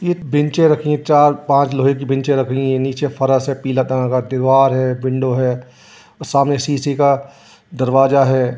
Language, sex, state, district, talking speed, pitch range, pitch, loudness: Hindi, male, Uttar Pradesh, Jyotiba Phule Nagar, 190 wpm, 130-145 Hz, 135 Hz, -16 LUFS